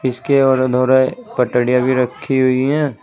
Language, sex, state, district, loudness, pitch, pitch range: Hindi, male, Uttar Pradesh, Saharanpur, -15 LUFS, 130 Hz, 125-135 Hz